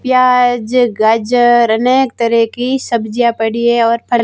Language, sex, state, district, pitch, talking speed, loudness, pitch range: Hindi, female, Rajasthan, Barmer, 235 Hz, 130 wpm, -12 LUFS, 230-250 Hz